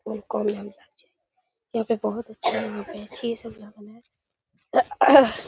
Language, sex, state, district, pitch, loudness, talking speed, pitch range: Hindi, male, Bihar, Gaya, 225 Hz, -24 LUFS, 120 wpm, 210-235 Hz